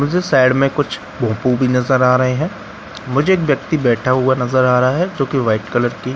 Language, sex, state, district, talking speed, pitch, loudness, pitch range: Hindi, male, Bihar, Katihar, 225 wpm, 130 Hz, -16 LUFS, 125-140 Hz